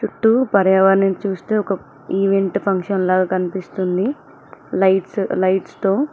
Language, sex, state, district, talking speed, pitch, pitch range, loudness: Telugu, female, Telangana, Mahabubabad, 120 wpm, 195 Hz, 185-200 Hz, -18 LUFS